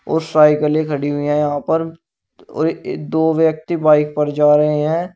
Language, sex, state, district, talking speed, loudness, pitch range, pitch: Hindi, male, Uttar Pradesh, Shamli, 175 wpm, -16 LUFS, 150-160 Hz, 150 Hz